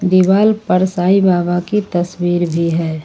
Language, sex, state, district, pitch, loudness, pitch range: Hindi, female, Jharkhand, Ranchi, 180 Hz, -14 LUFS, 175-190 Hz